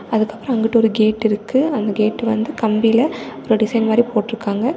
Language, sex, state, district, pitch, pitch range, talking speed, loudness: Tamil, female, Tamil Nadu, Nilgiris, 225 Hz, 215-235 Hz, 165 wpm, -17 LUFS